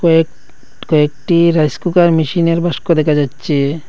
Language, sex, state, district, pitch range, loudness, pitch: Bengali, male, Assam, Hailakandi, 150-170 Hz, -14 LUFS, 165 Hz